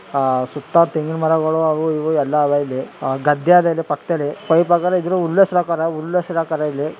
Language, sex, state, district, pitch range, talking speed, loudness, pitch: Kannada, male, Karnataka, Mysore, 145-170 Hz, 170 wpm, -18 LUFS, 160 Hz